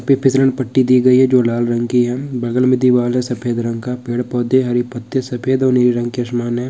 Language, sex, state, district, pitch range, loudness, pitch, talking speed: Hindi, male, Bihar, Jamui, 120-130 Hz, -16 LUFS, 125 Hz, 250 wpm